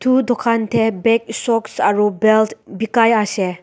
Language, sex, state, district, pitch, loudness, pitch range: Nagamese, female, Nagaland, Dimapur, 225 Hz, -17 LUFS, 215-230 Hz